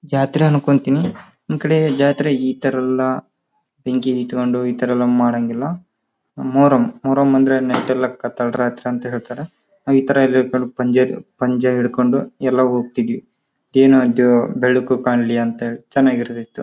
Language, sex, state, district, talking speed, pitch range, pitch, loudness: Kannada, male, Karnataka, Raichur, 95 wpm, 125-135 Hz, 130 Hz, -17 LUFS